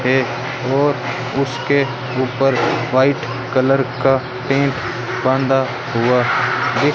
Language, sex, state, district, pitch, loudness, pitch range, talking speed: Hindi, male, Rajasthan, Bikaner, 130 Hz, -17 LUFS, 125-135 Hz, 95 wpm